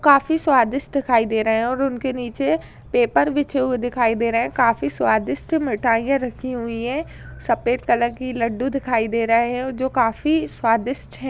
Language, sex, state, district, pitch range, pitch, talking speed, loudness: Hindi, female, Uttar Pradesh, Jyotiba Phule Nagar, 230-275 Hz, 250 Hz, 185 wpm, -20 LUFS